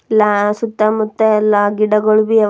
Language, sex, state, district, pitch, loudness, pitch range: Kannada, female, Karnataka, Bidar, 215 Hz, -14 LUFS, 210-220 Hz